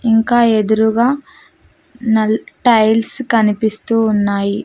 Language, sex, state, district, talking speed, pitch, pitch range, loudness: Telugu, female, Telangana, Mahabubabad, 80 wpm, 225 Hz, 220-240 Hz, -14 LUFS